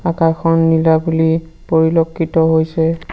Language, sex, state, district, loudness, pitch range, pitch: Assamese, male, Assam, Sonitpur, -15 LUFS, 160-165 Hz, 160 Hz